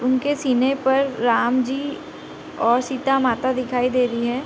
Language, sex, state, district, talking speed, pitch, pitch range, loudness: Hindi, female, Bihar, Sitamarhi, 160 wpm, 255 Hz, 245-270 Hz, -20 LUFS